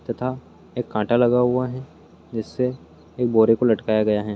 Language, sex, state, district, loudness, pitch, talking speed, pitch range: Hindi, male, Bihar, Jamui, -21 LUFS, 120 Hz, 180 wpm, 110-125 Hz